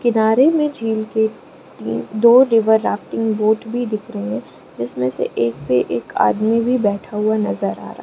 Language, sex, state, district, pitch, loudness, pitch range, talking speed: Hindi, female, Arunachal Pradesh, Lower Dibang Valley, 220 Hz, -18 LUFS, 205-230 Hz, 195 wpm